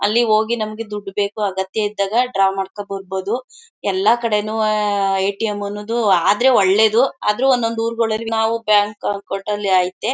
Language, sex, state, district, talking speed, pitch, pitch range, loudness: Kannada, female, Karnataka, Mysore, 135 wpm, 210 Hz, 200-225 Hz, -18 LUFS